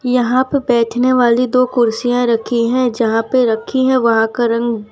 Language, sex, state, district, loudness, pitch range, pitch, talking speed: Hindi, female, Gujarat, Valsad, -14 LUFS, 230-255 Hz, 240 Hz, 185 wpm